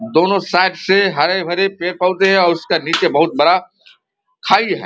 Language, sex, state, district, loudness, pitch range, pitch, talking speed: Hindi, male, Bihar, Vaishali, -15 LUFS, 175-195 Hz, 185 Hz, 175 wpm